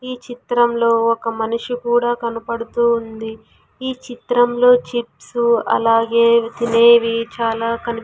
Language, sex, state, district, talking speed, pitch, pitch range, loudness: Telugu, female, Andhra Pradesh, Sri Satya Sai, 105 wpm, 235 Hz, 230-240 Hz, -17 LUFS